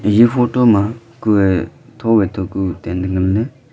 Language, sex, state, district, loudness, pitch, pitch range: Wancho, male, Arunachal Pradesh, Longding, -16 LUFS, 105 Hz, 95-115 Hz